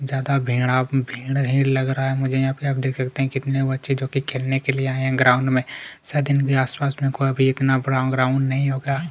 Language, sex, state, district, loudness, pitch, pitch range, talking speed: Hindi, male, Chhattisgarh, Kabirdham, -21 LUFS, 135 Hz, 130-135 Hz, 235 wpm